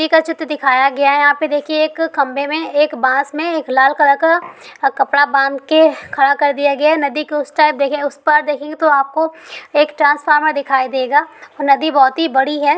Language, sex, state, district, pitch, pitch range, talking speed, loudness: Hindi, female, Bihar, Sitamarhi, 295 Hz, 280-310 Hz, 225 wpm, -14 LUFS